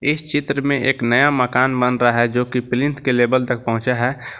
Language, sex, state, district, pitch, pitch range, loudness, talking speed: Hindi, male, Jharkhand, Garhwa, 125 Hz, 120-140 Hz, -18 LUFS, 205 wpm